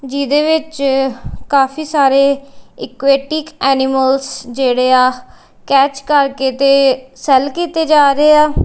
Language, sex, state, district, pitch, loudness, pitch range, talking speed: Punjabi, female, Punjab, Kapurthala, 275 Hz, -13 LUFS, 265-295 Hz, 110 wpm